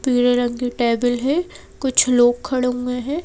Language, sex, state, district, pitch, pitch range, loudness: Hindi, female, Madhya Pradesh, Bhopal, 250 Hz, 245-260 Hz, -19 LUFS